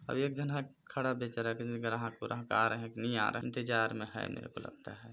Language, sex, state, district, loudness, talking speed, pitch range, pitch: Hindi, male, Chhattisgarh, Balrampur, -36 LUFS, 235 wpm, 115-125 Hz, 115 Hz